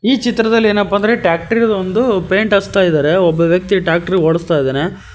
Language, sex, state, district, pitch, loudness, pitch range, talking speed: Kannada, male, Karnataka, Koppal, 190 Hz, -14 LUFS, 170-220 Hz, 165 wpm